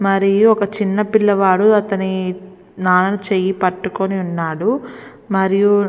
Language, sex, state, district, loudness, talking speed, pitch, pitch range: Telugu, female, Andhra Pradesh, Visakhapatnam, -16 LUFS, 110 wpm, 195 Hz, 190-205 Hz